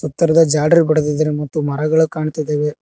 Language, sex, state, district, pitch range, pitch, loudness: Kannada, male, Karnataka, Koppal, 150-160 Hz, 155 Hz, -16 LUFS